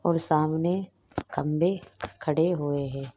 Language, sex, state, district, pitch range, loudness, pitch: Hindi, female, Rajasthan, Nagaur, 145-175 Hz, -27 LUFS, 155 Hz